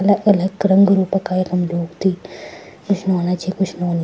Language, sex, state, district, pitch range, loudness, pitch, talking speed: Garhwali, female, Uttarakhand, Tehri Garhwal, 180-195 Hz, -18 LUFS, 185 Hz, 180 wpm